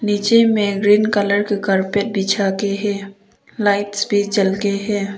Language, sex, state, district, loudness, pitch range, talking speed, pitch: Hindi, female, Arunachal Pradesh, Papum Pare, -17 LUFS, 200-205 Hz, 160 wpm, 205 Hz